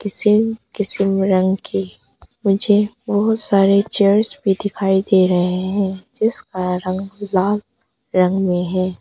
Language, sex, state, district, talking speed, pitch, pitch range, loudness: Hindi, female, Arunachal Pradesh, Papum Pare, 125 wpm, 195 Hz, 185-205 Hz, -17 LUFS